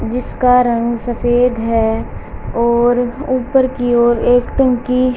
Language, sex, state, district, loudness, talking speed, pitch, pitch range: Hindi, female, Haryana, Jhajjar, -15 LUFS, 130 wpm, 245 Hz, 235-250 Hz